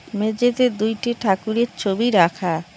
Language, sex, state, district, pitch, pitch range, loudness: Bengali, female, West Bengal, Cooch Behar, 215 Hz, 190-235 Hz, -20 LUFS